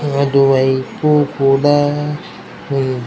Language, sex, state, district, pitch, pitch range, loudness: Telugu, male, Andhra Pradesh, Krishna, 140 Hz, 135-145 Hz, -15 LUFS